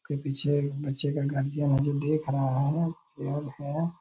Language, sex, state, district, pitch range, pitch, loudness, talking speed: Hindi, male, Bihar, Purnia, 140-145 Hz, 145 Hz, -29 LUFS, 120 wpm